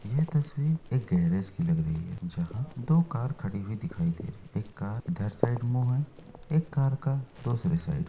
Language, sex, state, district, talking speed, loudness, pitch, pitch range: Hindi, male, Uttar Pradesh, Etah, 220 wpm, -30 LUFS, 140 Hz, 120-160 Hz